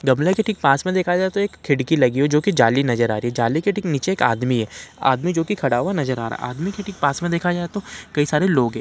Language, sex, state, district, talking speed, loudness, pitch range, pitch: Hindi, male, Uttarakhand, Uttarkashi, 305 wpm, -20 LUFS, 130-185 Hz, 150 Hz